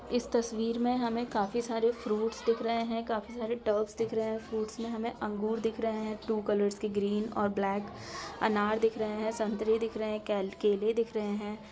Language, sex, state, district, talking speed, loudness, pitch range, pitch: Hindi, female, Bihar, Araria, 210 wpm, -32 LUFS, 210-230 Hz, 220 Hz